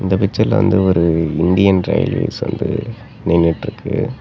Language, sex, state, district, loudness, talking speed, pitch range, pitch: Tamil, male, Tamil Nadu, Namakkal, -16 LUFS, 115 wpm, 85-110 Hz, 95 Hz